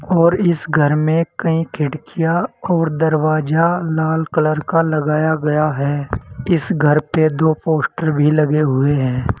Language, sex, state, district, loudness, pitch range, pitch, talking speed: Hindi, male, Uttar Pradesh, Saharanpur, -17 LUFS, 150-165 Hz, 155 Hz, 145 wpm